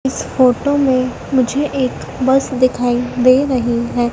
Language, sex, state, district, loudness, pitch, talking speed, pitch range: Hindi, female, Madhya Pradesh, Dhar, -15 LUFS, 255 Hz, 145 wpm, 245-265 Hz